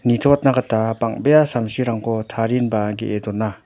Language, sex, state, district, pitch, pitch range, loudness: Garo, male, Meghalaya, West Garo Hills, 115 Hz, 110-125 Hz, -19 LUFS